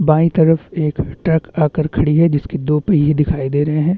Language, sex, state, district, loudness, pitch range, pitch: Hindi, male, Chhattisgarh, Bastar, -16 LUFS, 150-165 Hz, 155 Hz